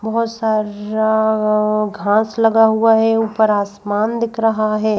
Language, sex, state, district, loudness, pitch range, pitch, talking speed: Hindi, female, Madhya Pradesh, Bhopal, -16 LUFS, 215-225 Hz, 220 Hz, 130 wpm